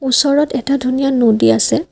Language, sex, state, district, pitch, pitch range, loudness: Assamese, female, Assam, Kamrup Metropolitan, 260 Hz, 245-275 Hz, -14 LUFS